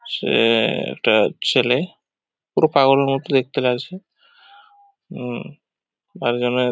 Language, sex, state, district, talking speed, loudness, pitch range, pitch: Bengali, male, West Bengal, Paschim Medinipur, 100 wpm, -19 LUFS, 125-185 Hz, 135 Hz